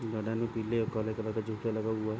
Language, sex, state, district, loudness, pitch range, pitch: Hindi, male, Uttar Pradesh, Jalaun, -34 LUFS, 110-115 Hz, 110 Hz